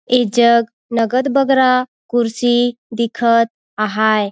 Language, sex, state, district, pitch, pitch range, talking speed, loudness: Surgujia, female, Chhattisgarh, Sarguja, 235 Hz, 230-250 Hz, 95 wpm, -16 LUFS